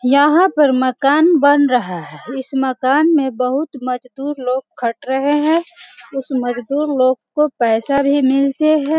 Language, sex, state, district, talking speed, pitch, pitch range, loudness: Hindi, female, Bihar, Sitamarhi, 155 wpm, 270 Hz, 255-295 Hz, -16 LUFS